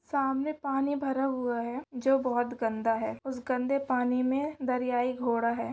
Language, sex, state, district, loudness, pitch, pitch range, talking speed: Hindi, female, West Bengal, Jalpaiguri, -30 LUFS, 255 Hz, 245-270 Hz, 145 wpm